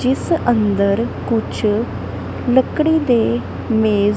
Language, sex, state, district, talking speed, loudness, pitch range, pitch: Punjabi, female, Punjab, Kapurthala, 85 wpm, -17 LUFS, 205-255 Hz, 225 Hz